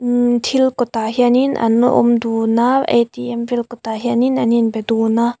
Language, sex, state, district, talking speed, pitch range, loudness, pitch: Mizo, female, Mizoram, Aizawl, 180 wpm, 230-245 Hz, -16 LUFS, 240 Hz